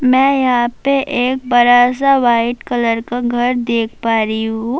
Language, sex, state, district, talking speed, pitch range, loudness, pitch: Urdu, female, Bihar, Saharsa, 175 wpm, 235-255 Hz, -14 LUFS, 245 Hz